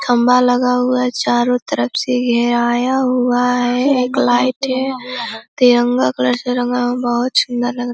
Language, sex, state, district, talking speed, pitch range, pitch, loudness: Hindi, female, Bihar, Sitamarhi, 180 wpm, 240-250 Hz, 245 Hz, -16 LUFS